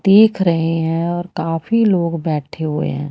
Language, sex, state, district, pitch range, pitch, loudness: Hindi, female, Haryana, Rohtak, 160-185 Hz, 165 Hz, -17 LUFS